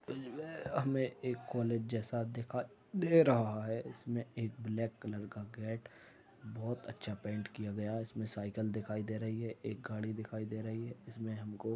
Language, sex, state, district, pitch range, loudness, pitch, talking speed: Hindi, male, Uttar Pradesh, Ghazipur, 110-120 Hz, -38 LUFS, 115 Hz, 170 wpm